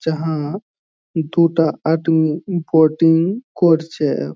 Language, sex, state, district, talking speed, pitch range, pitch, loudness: Bengali, male, West Bengal, Jhargram, 85 wpm, 160-170 Hz, 160 Hz, -17 LUFS